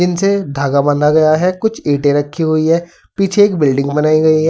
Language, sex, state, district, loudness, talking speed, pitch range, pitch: Hindi, male, Uttar Pradesh, Saharanpur, -13 LUFS, 215 wpm, 145-180 Hz, 155 Hz